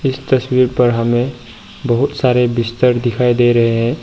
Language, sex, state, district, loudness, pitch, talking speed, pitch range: Hindi, male, Arunachal Pradesh, Papum Pare, -15 LUFS, 120 Hz, 165 wpm, 120-130 Hz